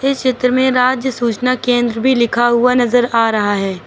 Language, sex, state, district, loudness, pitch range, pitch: Hindi, female, Uttar Pradesh, Lucknow, -14 LUFS, 235-255 Hz, 245 Hz